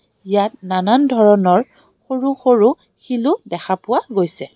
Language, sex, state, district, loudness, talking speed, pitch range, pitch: Assamese, female, Assam, Kamrup Metropolitan, -16 LUFS, 130 wpm, 185-250 Hz, 215 Hz